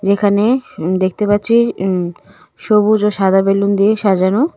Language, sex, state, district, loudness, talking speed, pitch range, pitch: Bengali, female, West Bengal, Cooch Behar, -14 LUFS, 155 wpm, 190-215 Hz, 200 Hz